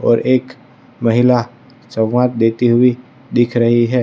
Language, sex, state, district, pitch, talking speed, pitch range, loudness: Hindi, male, Gujarat, Valsad, 120 Hz, 135 wpm, 120-125 Hz, -15 LUFS